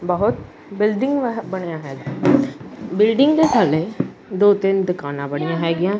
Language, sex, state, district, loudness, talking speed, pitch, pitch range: Punjabi, male, Punjab, Kapurthala, -19 LUFS, 120 wpm, 195 Hz, 165-230 Hz